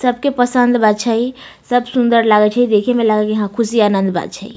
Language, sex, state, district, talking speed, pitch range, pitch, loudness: Maithili, female, Bihar, Samastipur, 235 wpm, 210-245 Hz, 230 Hz, -14 LUFS